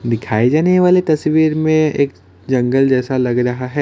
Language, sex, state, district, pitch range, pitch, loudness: Hindi, male, Assam, Kamrup Metropolitan, 125-155 Hz, 135 Hz, -15 LUFS